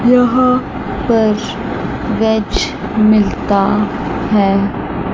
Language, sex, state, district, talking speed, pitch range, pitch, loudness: Hindi, female, Chandigarh, Chandigarh, 60 wpm, 205-240 Hz, 215 Hz, -14 LUFS